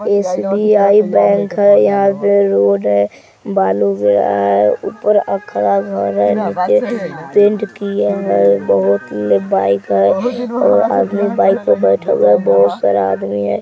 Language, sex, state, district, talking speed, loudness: Hindi, female, Bihar, Vaishali, 130 wpm, -13 LUFS